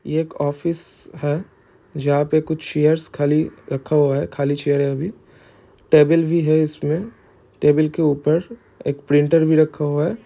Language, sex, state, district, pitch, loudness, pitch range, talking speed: Hindi, male, Bihar, East Champaran, 150 Hz, -19 LUFS, 145-160 Hz, 170 wpm